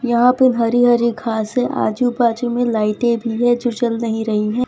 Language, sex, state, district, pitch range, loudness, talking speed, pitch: Hindi, female, Gujarat, Valsad, 225-245 Hz, -17 LUFS, 220 wpm, 235 Hz